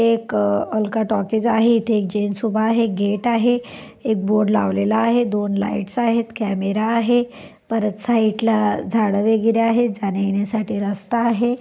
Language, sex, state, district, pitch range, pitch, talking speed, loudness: Marathi, female, Maharashtra, Pune, 205-230 Hz, 220 Hz, 150 wpm, -19 LUFS